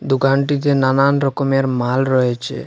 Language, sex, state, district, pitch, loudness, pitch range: Bengali, male, Assam, Hailakandi, 135 Hz, -16 LUFS, 130-140 Hz